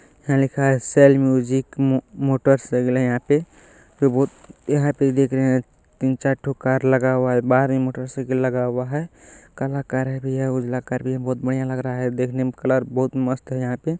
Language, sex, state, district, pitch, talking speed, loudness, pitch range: Hindi, male, Bihar, Kishanganj, 130 Hz, 235 wpm, -21 LUFS, 130-135 Hz